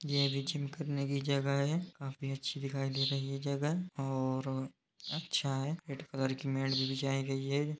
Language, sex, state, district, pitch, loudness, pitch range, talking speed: Hindi, male, Bihar, East Champaran, 140 Hz, -35 LUFS, 135-145 Hz, 190 wpm